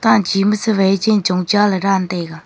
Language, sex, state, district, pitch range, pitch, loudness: Wancho, female, Arunachal Pradesh, Longding, 185-210 Hz, 195 Hz, -15 LUFS